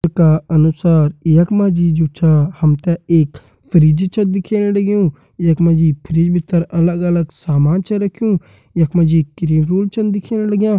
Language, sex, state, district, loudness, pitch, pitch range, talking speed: Hindi, male, Uttarakhand, Uttarkashi, -15 LUFS, 170 Hz, 160-195 Hz, 170 wpm